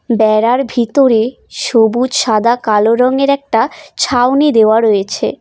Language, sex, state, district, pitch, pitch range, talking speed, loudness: Bengali, female, West Bengal, Cooch Behar, 235 Hz, 220-265 Hz, 110 wpm, -12 LUFS